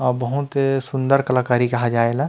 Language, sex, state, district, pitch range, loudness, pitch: Chhattisgarhi, male, Chhattisgarh, Rajnandgaon, 120-135 Hz, -20 LUFS, 130 Hz